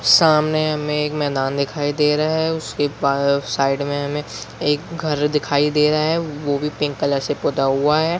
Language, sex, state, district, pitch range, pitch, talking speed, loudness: Hindi, male, Bihar, Begusarai, 140-155 Hz, 150 Hz, 205 wpm, -19 LUFS